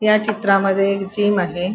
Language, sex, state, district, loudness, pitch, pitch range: Marathi, female, Goa, North and South Goa, -18 LUFS, 200 Hz, 195-210 Hz